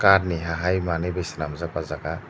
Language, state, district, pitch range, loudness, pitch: Kokborok, Tripura, Dhalai, 80-90 Hz, -25 LUFS, 85 Hz